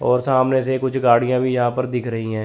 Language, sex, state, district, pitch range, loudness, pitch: Hindi, male, Chandigarh, Chandigarh, 120-130 Hz, -19 LUFS, 125 Hz